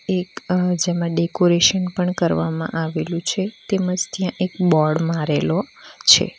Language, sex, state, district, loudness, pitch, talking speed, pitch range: Gujarati, female, Gujarat, Valsad, -20 LUFS, 180 Hz, 130 wpm, 165-185 Hz